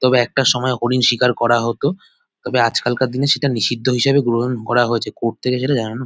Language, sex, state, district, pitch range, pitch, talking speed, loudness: Bengali, male, West Bengal, North 24 Parganas, 120-130 Hz, 125 Hz, 200 wpm, -17 LUFS